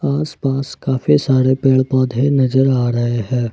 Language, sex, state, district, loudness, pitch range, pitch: Hindi, male, Jharkhand, Ranchi, -16 LUFS, 130-135 Hz, 130 Hz